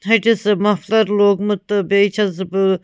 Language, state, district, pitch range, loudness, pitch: Kashmiri, Punjab, Kapurthala, 195-210 Hz, -16 LUFS, 205 Hz